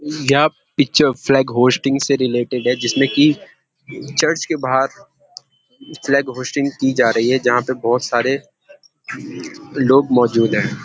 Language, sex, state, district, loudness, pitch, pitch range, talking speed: Hindi, male, Uttarakhand, Uttarkashi, -16 LUFS, 135 Hz, 125-145 Hz, 140 wpm